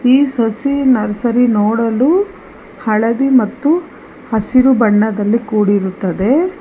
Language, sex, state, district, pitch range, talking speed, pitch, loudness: Kannada, female, Karnataka, Bangalore, 215-265 Hz, 80 wpm, 230 Hz, -14 LUFS